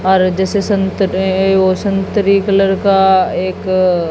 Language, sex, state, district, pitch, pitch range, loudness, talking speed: Hindi, female, Haryana, Jhajjar, 190 Hz, 185-195 Hz, -13 LUFS, 115 wpm